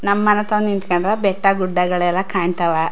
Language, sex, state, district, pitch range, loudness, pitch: Kannada, female, Karnataka, Chamarajanagar, 180-200 Hz, -18 LUFS, 190 Hz